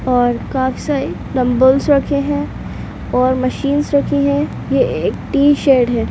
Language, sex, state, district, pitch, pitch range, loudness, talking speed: Hindi, female, Goa, North and South Goa, 275 Hz, 255-285 Hz, -16 LUFS, 145 wpm